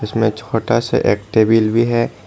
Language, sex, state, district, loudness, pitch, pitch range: Hindi, male, Tripura, Dhalai, -16 LUFS, 115 Hz, 110-120 Hz